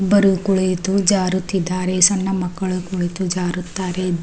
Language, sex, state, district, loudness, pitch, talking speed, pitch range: Kannada, female, Karnataka, Raichur, -18 LUFS, 185 Hz, 100 wpm, 180-195 Hz